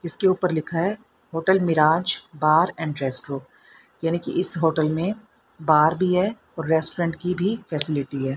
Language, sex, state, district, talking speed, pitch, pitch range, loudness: Hindi, female, Haryana, Rohtak, 165 wpm, 165 Hz, 155-185 Hz, -20 LUFS